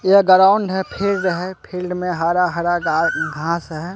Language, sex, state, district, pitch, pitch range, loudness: Hindi, male, Bihar, Katihar, 180 Hz, 170-190 Hz, -18 LUFS